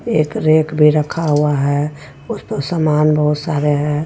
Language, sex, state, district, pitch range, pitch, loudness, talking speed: Hindi, female, Jharkhand, Ranchi, 150-155 Hz, 150 Hz, -16 LUFS, 165 wpm